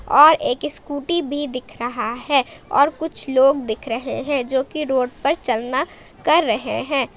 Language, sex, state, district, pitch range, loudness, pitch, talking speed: Hindi, female, Jharkhand, Palamu, 255-295 Hz, -20 LUFS, 275 Hz, 175 wpm